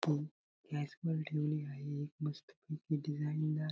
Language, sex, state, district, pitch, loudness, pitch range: Marathi, male, Maharashtra, Sindhudurg, 150 Hz, -39 LUFS, 145-155 Hz